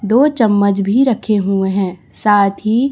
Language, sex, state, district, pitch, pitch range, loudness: Hindi, male, Chhattisgarh, Raipur, 210 Hz, 195-230 Hz, -14 LUFS